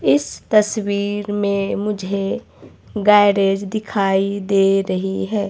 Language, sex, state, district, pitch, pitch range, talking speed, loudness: Hindi, female, Himachal Pradesh, Shimla, 200 Hz, 195-205 Hz, 100 wpm, -18 LUFS